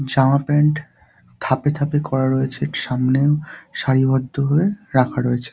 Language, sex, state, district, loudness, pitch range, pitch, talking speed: Bengali, male, West Bengal, Dakshin Dinajpur, -19 LUFS, 130-145 Hz, 135 Hz, 130 wpm